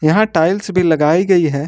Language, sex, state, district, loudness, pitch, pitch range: Hindi, male, Jharkhand, Ranchi, -14 LUFS, 170 Hz, 155-185 Hz